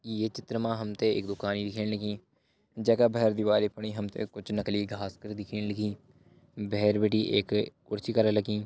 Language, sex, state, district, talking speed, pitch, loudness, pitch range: Hindi, male, Uttarakhand, Uttarkashi, 175 wpm, 105 Hz, -30 LUFS, 105-110 Hz